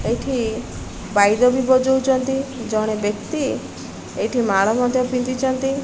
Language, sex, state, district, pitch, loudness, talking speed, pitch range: Odia, female, Odisha, Malkangiri, 250 Hz, -20 LUFS, 105 wpm, 215-265 Hz